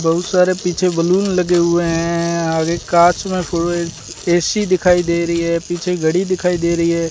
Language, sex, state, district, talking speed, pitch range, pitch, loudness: Hindi, male, Rajasthan, Bikaner, 185 wpm, 170-180 Hz, 170 Hz, -16 LUFS